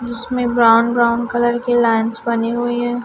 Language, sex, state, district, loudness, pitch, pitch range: Hindi, female, Chhattisgarh, Raipur, -16 LUFS, 240 Hz, 235-240 Hz